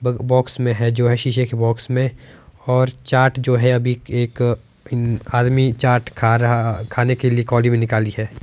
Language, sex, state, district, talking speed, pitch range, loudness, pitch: Hindi, male, Himachal Pradesh, Shimla, 185 wpm, 115-125 Hz, -18 LUFS, 120 Hz